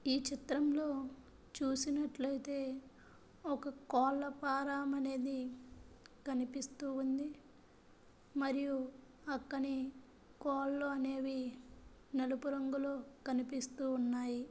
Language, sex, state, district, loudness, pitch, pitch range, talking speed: Telugu, female, Andhra Pradesh, Chittoor, -39 LUFS, 270 Hz, 265-280 Hz, 70 wpm